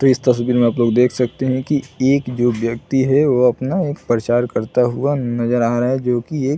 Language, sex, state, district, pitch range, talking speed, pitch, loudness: Hindi, male, Chhattisgarh, Bilaspur, 120-135 Hz, 225 wpm, 125 Hz, -17 LUFS